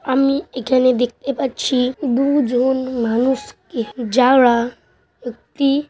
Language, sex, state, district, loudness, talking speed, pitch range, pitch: Bengali, male, West Bengal, Malda, -17 LUFS, 80 wpm, 245-275 Hz, 255 Hz